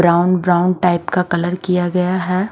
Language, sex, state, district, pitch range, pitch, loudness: Hindi, female, Haryana, Charkhi Dadri, 175-180 Hz, 180 Hz, -16 LUFS